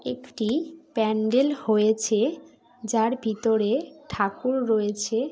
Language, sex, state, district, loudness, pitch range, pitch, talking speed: Bengali, female, West Bengal, Jhargram, -25 LUFS, 220-260 Hz, 225 Hz, 80 wpm